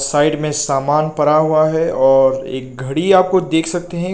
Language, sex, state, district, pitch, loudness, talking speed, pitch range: Hindi, male, Nagaland, Kohima, 150 Hz, -15 LUFS, 190 wpm, 135-165 Hz